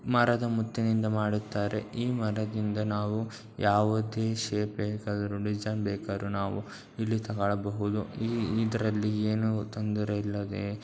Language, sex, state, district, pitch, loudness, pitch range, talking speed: Kannada, male, Karnataka, Dakshina Kannada, 105 Hz, -30 LUFS, 105-110 Hz, 95 wpm